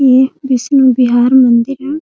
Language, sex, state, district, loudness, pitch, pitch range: Hindi, female, Bihar, Muzaffarpur, -10 LUFS, 260 Hz, 250-275 Hz